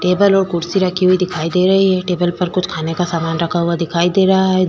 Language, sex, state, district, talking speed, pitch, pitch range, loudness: Hindi, female, Uttar Pradesh, Budaun, 270 wpm, 180 Hz, 170-185 Hz, -15 LUFS